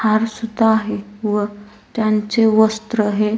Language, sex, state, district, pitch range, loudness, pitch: Marathi, female, Maharashtra, Solapur, 210-220 Hz, -18 LUFS, 215 Hz